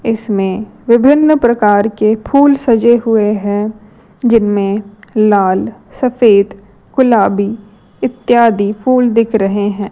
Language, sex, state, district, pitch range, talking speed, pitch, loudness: Hindi, female, Chhattisgarh, Raipur, 205-235 Hz, 105 wpm, 215 Hz, -12 LUFS